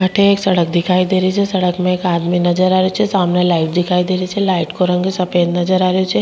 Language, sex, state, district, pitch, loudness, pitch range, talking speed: Rajasthani, female, Rajasthan, Churu, 180 Hz, -15 LUFS, 175-185 Hz, 280 wpm